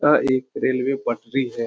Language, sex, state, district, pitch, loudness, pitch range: Hindi, male, Bihar, Lakhisarai, 130 Hz, -22 LUFS, 120-135 Hz